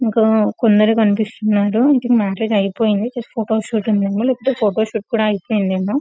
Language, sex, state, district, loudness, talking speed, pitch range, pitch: Telugu, female, Telangana, Karimnagar, -17 LUFS, 160 wpm, 210-230 Hz, 220 Hz